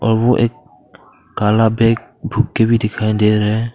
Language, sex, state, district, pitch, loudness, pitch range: Hindi, male, Arunachal Pradesh, Papum Pare, 110 Hz, -16 LUFS, 105-115 Hz